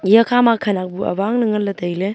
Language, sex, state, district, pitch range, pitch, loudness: Wancho, female, Arunachal Pradesh, Longding, 190-230 Hz, 205 Hz, -17 LUFS